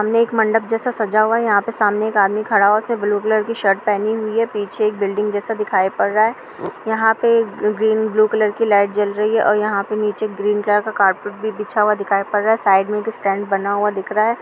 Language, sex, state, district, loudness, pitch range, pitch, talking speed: Hindi, female, Bihar, Kishanganj, -17 LUFS, 205-220 Hz, 210 Hz, 275 wpm